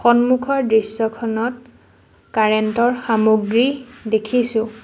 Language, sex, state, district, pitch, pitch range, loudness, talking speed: Assamese, female, Assam, Sonitpur, 230 Hz, 220-245 Hz, -18 LUFS, 75 wpm